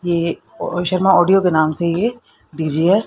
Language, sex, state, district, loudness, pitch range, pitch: Hindi, female, Haryana, Rohtak, -17 LUFS, 165-190 Hz, 175 Hz